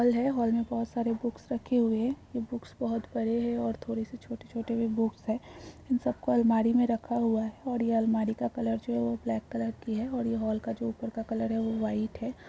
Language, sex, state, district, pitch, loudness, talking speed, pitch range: Hindi, female, Bihar, Supaul, 230 Hz, -30 LUFS, 255 wpm, 220-235 Hz